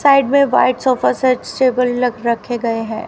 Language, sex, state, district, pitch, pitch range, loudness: Hindi, female, Haryana, Rohtak, 250 Hz, 235-260 Hz, -16 LUFS